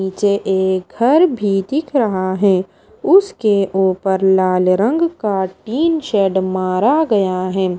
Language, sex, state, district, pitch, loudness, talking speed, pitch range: Hindi, female, Himachal Pradesh, Shimla, 195 Hz, -16 LUFS, 130 wpm, 190-240 Hz